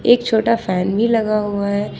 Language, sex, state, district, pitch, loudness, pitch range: Hindi, female, Jharkhand, Ranchi, 215 Hz, -17 LUFS, 200-230 Hz